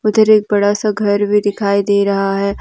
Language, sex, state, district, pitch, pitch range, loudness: Hindi, female, Jharkhand, Deoghar, 205 Hz, 200-210 Hz, -14 LUFS